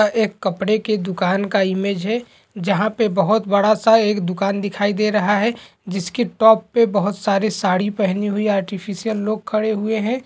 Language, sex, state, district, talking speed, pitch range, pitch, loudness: Hindi, male, Bihar, Jamui, 180 wpm, 195-220 Hz, 205 Hz, -19 LUFS